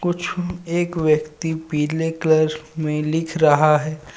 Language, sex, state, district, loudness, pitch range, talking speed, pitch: Hindi, male, Jharkhand, Ranchi, -20 LUFS, 155-165 Hz, 130 wpm, 160 Hz